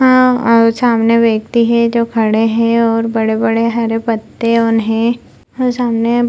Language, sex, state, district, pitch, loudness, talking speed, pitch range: Hindi, female, Bihar, Purnia, 230 Hz, -13 LUFS, 150 wpm, 225-235 Hz